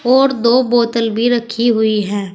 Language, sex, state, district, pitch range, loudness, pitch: Hindi, female, Uttar Pradesh, Saharanpur, 220-240 Hz, -14 LUFS, 235 Hz